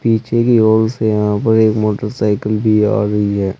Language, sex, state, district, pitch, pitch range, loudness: Hindi, male, Uttar Pradesh, Saharanpur, 110 Hz, 105-110 Hz, -14 LUFS